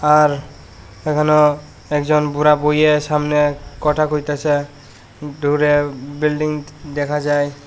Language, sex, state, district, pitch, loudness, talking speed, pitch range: Bengali, male, Tripura, Unakoti, 150 Hz, -17 LUFS, 95 wpm, 145-150 Hz